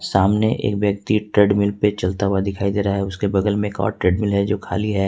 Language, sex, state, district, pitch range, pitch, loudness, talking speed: Hindi, male, Jharkhand, Ranchi, 100-105 Hz, 100 Hz, -20 LUFS, 250 wpm